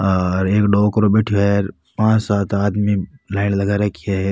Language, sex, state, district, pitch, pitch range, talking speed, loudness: Rajasthani, male, Rajasthan, Nagaur, 100 Hz, 95-105 Hz, 180 wpm, -18 LUFS